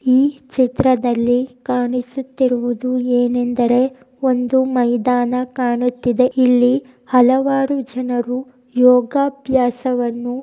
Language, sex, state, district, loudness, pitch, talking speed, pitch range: Kannada, female, Karnataka, Raichur, -17 LUFS, 250 Hz, 65 wpm, 245-260 Hz